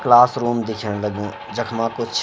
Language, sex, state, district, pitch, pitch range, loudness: Garhwali, male, Uttarakhand, Uttarkashi, 115 Hz, 105-120 Hz, -20 LUFS